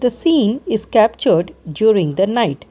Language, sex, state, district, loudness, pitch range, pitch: English, female, Karnataka, Bangalore, -16 LUFS, 185-235 Hz, 220 Hz